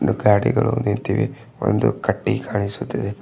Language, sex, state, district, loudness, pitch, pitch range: Kannada, male, Karnataka, Bidar, -21 LUFS, 110 Hz, 105-125 Hz